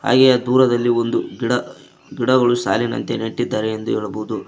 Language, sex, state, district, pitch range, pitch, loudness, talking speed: Kannada, male, Karnataka, Koppal, 115-130 Hz, 120 Hz, -18 LUFS, 120 wpm